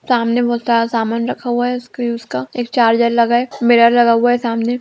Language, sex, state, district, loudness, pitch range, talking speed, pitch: Magahi, female, Bihar, Gaya, -15 LUFS, 230-245 Hz, 235 wpm, 235 Hz